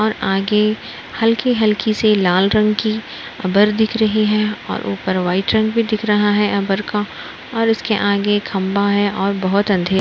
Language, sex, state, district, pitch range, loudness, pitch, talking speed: Hindi, female, Uttar Pradesh, Budaun, 195-215 Hz, -17 LUFS, 210 Hz, 180 wpm